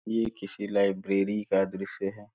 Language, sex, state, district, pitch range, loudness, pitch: Hindi, male, Uttar Pradesh, Gorakhpur, 100-105 Hz, -29 LUFS, 100 Hz